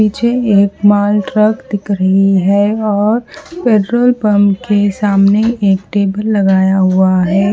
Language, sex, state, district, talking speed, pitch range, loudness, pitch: Hindi, female, Haryana, Charkhi Dadri, 135 wpm, 195-215 Hz, -12 LUFS, 205 Hz